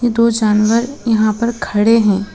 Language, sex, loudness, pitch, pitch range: Hindi, female, -14 LUFS, 225 Hz, 210-230 Hz